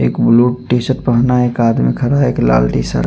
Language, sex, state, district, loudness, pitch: Hindi, male, Chandigarh, Chandigarh, -13 LUFS, 120 Hz